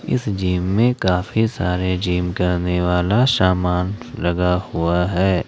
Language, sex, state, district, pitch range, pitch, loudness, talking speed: Hindi, male, Jharkhand, Ranchi, 90-100 Hz, 90 Hz, -19 LUFS, 130 wpm